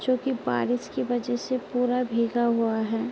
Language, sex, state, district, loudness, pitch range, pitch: Hindi, female, Bihar, Sitamarhi, -26 LUFS, 225-250 Hz, 240 Hz